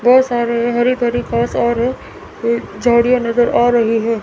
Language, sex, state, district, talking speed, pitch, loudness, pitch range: Hindi, female, Chandigarh, Chandigarh, 155 wpm, 240 Hz, -15 LUFS, 235-245 Hz